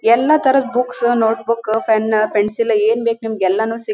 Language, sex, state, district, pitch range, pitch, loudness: Kannada, female, Karnataka, Dharwad, 220-235 Hz, 225 Hz, -16 LUFS